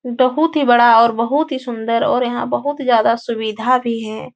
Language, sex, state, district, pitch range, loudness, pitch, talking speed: Hindi, female, Uttar Pradesh, Etah, 230-255 Hz, -16 LUFS, 240 Hz, 195 wpm